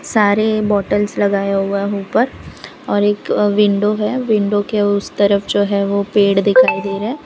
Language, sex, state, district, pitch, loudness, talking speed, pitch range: Hindi, female, Gujarat, Valsad, 205 Hz, -15 LUFS, 175 wpm, 200-210 Hz